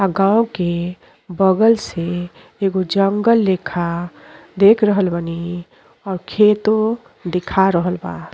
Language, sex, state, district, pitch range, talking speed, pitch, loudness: Bhojpuri, female, Uttar Pradesh, Deoria, 175-205 Hz, 115 wpm, 190 Hz, -17 LUFS